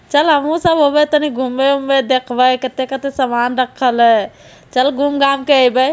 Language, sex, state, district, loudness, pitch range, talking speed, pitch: Hindi, female, Bihar, Jamui, -14 LUFS, 255-285 Hz, 180 wpm, 270 Hz